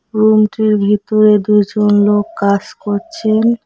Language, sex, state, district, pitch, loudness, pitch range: Bengali, female, West Bengal, Cooch Behar, 210 Hz, -13 LUFS, 205-215 Hz